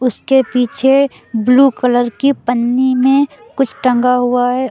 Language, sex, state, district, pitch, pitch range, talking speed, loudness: Hindi, female, Uttar Pradesh, Lucknow, 255 Hz, 245-270 Hz, 140 wpm, -13 LUFS